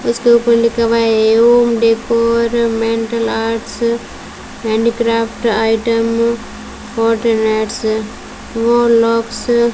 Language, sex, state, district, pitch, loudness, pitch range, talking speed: Hindi, female, Rajasthan, Bikaner, 230 Hz, -14 LUFS, 225-235 Hz, 90 wpm